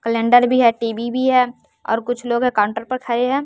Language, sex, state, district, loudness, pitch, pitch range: Hindi, male, Bihar, West Champaran, -18 LUFS, 245 Hz, 230-250 Hz